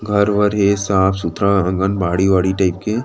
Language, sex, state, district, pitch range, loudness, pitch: Chhattisgarhi, male, Chhattisgarh, Rajnandgaon, 95-100 Hz, -16 LUFS, 95 Hz